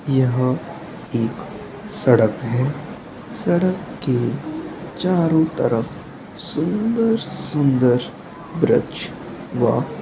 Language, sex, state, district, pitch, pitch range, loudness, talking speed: Hindi, male, Uttar Pradesh, Etah, 155 Hz, 125-185 Hz, -20 LUFS, 70 wpm